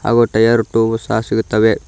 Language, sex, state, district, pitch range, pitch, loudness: Kannada, male, Karnataka, Koppal, 110-115 Hz, 115 Hz, -15 LUFS